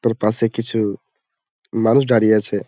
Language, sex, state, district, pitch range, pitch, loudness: Bengali, male, West Bengal, Malda, 105-115 Hz, 110 Hz, -18 LUFS